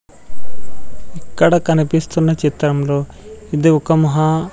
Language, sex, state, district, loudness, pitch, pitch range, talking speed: Telugu, male, Andhra Pradesh, Sri Satya Sai, -15 LUFS, 160 Hz, 150-165 Hz, 80 wpm